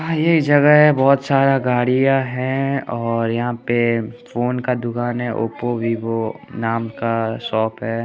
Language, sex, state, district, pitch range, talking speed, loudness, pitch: Hindi, male, Chandigarh, Chandigarh, 115-135 Hz, 150 wpm, -18 LUFS, 120 Hz